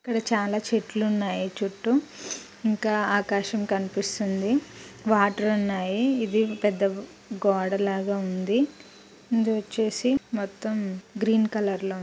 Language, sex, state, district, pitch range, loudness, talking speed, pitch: Telugu, female, Telangana, Nalgonda, 200-220 Hz, -26 LUFS, 105 wpm, 210 Hz